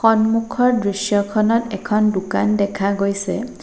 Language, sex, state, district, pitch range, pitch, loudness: Assamese, female, Assam, Sonitpur, 200-225 Hz, 210 Hz, -19 LUFS